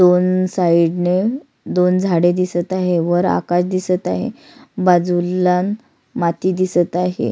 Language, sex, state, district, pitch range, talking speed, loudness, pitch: Marathi, female, Maharashtra, Sindhudurg, 175-185 Hz, 125 wpm, -17 LUFS, 180 Hz